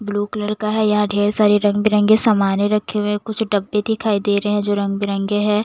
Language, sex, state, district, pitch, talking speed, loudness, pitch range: Hindi, male, Odisha, Nuapada, 210 Hz, 235 wpm, -18 LUFS, 205-215 Hz